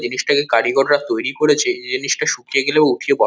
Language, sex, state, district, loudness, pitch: Bengali, male, West Bengal, Kolkata, -17 LUFS, 145 Hz